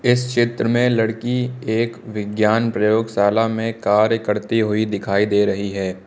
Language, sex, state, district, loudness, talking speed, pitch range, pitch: Hindi, male, Uttar Pradesh, Lucknow, -19 LUFS, 150 wpm, 105-115 Hz, 110 Hz